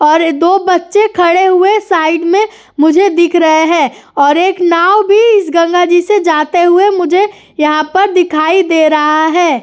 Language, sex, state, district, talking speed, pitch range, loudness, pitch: Hindi, female, Uttar Pradesh, Jyotiba Phule Nagar, 175 wpm, 320-385 Hz, -10 LUFS, 350 Hz